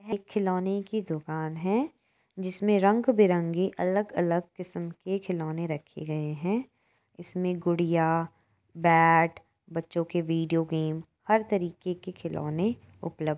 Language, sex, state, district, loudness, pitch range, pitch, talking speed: Hindi, female, Uttar Pradesh, Etah, -28 LUFS, 165-195 Hz, 175 Hz, 120 wpm